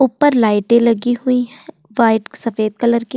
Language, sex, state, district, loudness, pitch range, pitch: Hindi, female, Uttar Pradesh, Jyotiba Phule Nagar, -15 LUFS, 220-245 Hz, 235 Hz